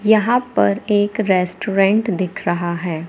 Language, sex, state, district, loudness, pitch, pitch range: Hindi, female, Madhya Pradesh, Katni, -18 LUFS, 195 Hz, 180-215 Hz